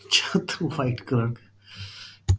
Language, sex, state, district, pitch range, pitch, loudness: Hindi, male, Bihar, Gaya, 100-140 Hz, 115 Hz, -26 LUFS